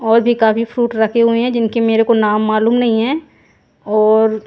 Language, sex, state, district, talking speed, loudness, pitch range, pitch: Hindi, female, Haryana, Jhajjar, 200 wpm, -14 LUFS, 220-235 Hz, 225 Hz